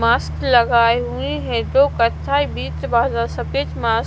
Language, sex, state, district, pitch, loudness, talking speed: Hindi, female, Punjab, Kapurthala, 230 Hz, -18 LUFS, 130 wpm